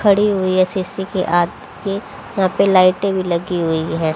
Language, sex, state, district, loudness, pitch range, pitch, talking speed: Hindi, female, Haryana, Rohtak, -17 LUFS, 175-195 Hz, 185 Hz, 175 wpm